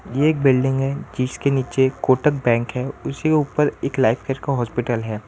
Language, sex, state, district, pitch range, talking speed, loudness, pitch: Hindi, male, Gujarat, Valsad, 120-140 Hz, 195 wpm, -20 LUFS, 130 Hz